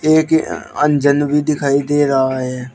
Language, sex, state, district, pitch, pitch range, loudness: Hindi, male, Uttar Pradesh, Shamli, 145 Hz, 135-150 Hz, -15 LUFS